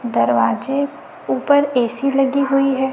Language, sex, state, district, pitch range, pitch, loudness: Hindi, female, Chhattisgarh, Raipur, 240-275 Hz, 270 Hz, -17 LUFS